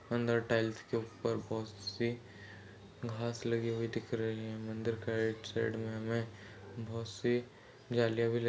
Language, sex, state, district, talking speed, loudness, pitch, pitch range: Hindi, male, Chhattisgarh, Kabirdham, 170 wpm, -37 LUFS, 115 Hz, 110-115 Hz